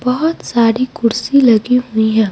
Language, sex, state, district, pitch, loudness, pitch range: Hindi, female, Bihar, Patna, 240 Hz, -14 LUFS, 225-255 Hz